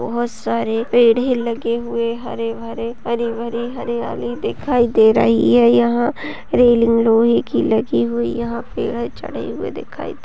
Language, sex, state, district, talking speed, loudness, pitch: Hindi, female, Chhattisgarh, Jashpur, 150 wpm, -18 LUFS, 230 Hz